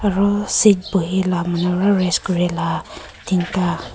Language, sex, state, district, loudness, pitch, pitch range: Nagamese, female, Nagaland, Kohima, -18 LUFS, 185 Hz, 175-195 Hz